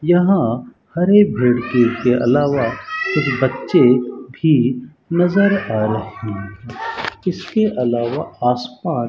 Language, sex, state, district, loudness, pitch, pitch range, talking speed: Hindi, male, Rajasthan, Bikaner, -17 LUFS, 125 Hz, 120-175 Hz, 105 wpm